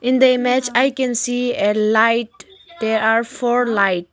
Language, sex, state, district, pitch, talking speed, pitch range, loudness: English, female, Arunachal Pradesh, Lower Dibang Valley, 240 Hz, 175 wpm, 220-255 Hz, -17 LUFS